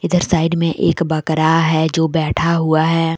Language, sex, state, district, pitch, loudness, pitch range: Hindi, female, Jharkhand, Deoghar, 165 Hz, -16 LUFS, 160-165 Hz